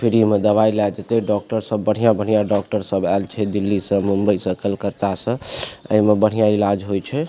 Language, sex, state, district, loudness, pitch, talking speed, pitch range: Maithili, male, Bihar, Supaul, -19 LUFS, 105 Hz, 195 wpm, 100-110 Hz